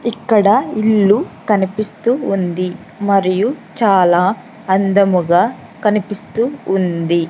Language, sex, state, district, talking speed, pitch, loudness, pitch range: Telugu, female, Andhra Pradesh, Sri Satya Sai, 75 wpm, 200 Hz, -15 LUFS, 185-220 Hz